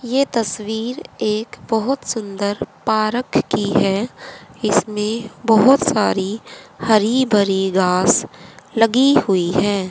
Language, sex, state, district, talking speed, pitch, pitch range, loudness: Hindi, female, Haryana, Rohtak, 105 wpm, 220 Hz, 200-240 Hz, -18 LUFS